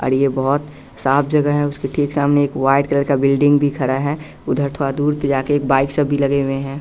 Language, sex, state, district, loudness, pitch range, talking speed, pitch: Hindi, male, Bihar, West Champaran, -17 LUFS, 135-145 Hz, 240 wpm, 140 Hz